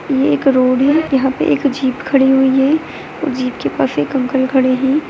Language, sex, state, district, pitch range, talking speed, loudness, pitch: Hindi, female, Bihar, Begusarai, 260-280 Hz, 210 wpm, -14 LUFS, 265 Hz